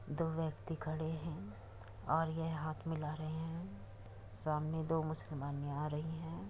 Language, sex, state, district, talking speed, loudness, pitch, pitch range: Hindi, female, Uttar Pradesh, Muzaffarnagar, 150 wpm, -41 LUFS, 155 Hz, 140-160 Hz